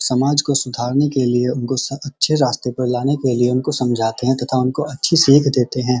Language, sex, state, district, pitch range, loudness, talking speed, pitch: Hindi, male, Uttar Pradesh, Muzaffarnagar, 125-140 Hz, -17 LUFS, 210 wpm, 130 Hz